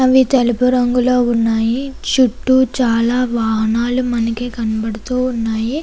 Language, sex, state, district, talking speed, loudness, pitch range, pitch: Telugu, female, Andhra Pradesh, Chittoor, 105 wpm, -16 LUFS, 230-255 Hz, 245 Hz